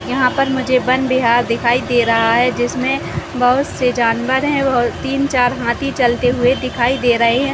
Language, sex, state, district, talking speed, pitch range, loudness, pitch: Hindi, female, Chhattisgarh, Raigarh, 185 wpm, 240-260 Hz, -15 LUFS, 250 Hz